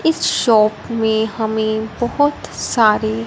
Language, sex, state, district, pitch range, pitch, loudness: Hindi, female, Punjab, Fazilka, 220-240 Hz, 220 Hz, -17 LUFS